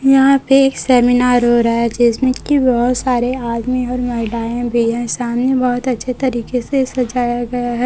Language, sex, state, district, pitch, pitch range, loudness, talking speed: Hindi, female, Chhattisgarh, Raipur, 245 Hz, 240-255 Hz, -15 LUFS, 185 wpm